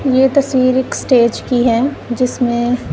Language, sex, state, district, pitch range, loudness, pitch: Hindi, male, Punjab, Kapurthala, 245-260 Hz, -14 LUFS, 250 Hz